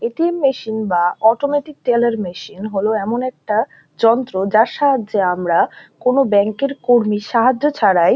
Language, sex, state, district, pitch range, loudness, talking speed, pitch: Bengali, female, West Bengal, North 24 Parganas, 210-265 Hz, -17 LUFS, 155 wpm, 230 Hz